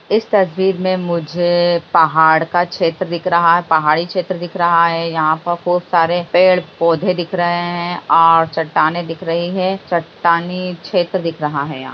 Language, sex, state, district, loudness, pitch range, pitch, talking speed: Hindi, female, Bihar, Lakhisarai, -15 LUFS, 165-180 Hz, 175 Hz, 170 wpm